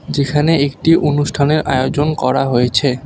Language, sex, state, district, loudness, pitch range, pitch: Bengali, male, West Bengal, Alipurduar, -15 LUFS, 135-150 Hz, 145 Hz